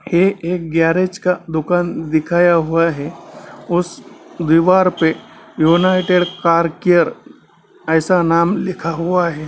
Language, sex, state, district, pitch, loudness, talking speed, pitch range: Hindi, male, Bihar, Gaya, 170 Hz, -16 LUFS, 120 wpm, 165-180 Hz